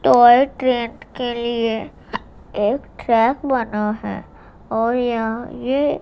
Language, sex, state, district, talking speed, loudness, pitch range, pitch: Hindi, female, Gujarat, Gandhinagar, 110 wpm, -19 LUFS, 230-255 Hz, 240 Hz